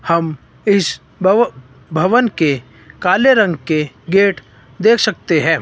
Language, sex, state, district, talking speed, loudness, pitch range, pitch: Hindi, male, Himachal Pradesh, Shimla, 130 wpm, -15 LUFS, 150-200 Hz, 170 Hz